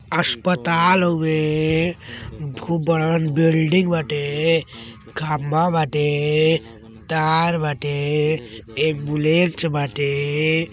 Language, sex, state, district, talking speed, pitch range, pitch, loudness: Bhojpuri, male, Uttar Pradesh, Deoria, 75 wpm, 145-165 Hz, 155 Hz, -19 LUFS